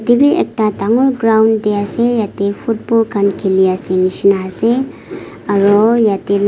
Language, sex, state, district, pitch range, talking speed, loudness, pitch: Nagamese, female, Nagaland, Kohima, 200-230 Hz, 155 wpm, -14 LUFS, 215 Hz